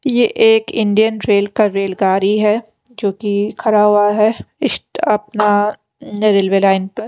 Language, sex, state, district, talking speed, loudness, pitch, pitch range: Hindi, female, Punjab, Pathankot, 145 wpm, -15 LUFS, 210 Hz, 200-220 Hz